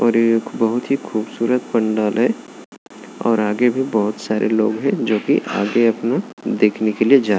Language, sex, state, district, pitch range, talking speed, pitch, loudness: Hindi, male, Maharashtra, Aurangabad, 110-120 Hz, 185 wpm, 115 Hz, -18 LUFS